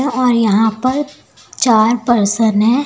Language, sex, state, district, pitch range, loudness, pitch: Hindi, female, Uttar Pradesh, Lucknow, 220-255 Hz, -14 LUFS, 230 Hz